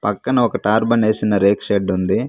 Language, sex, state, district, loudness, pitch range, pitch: Telugu, male, Andhra Pradesh, Manyam, -17 LUFS, 100-110 Hz, 105 Hz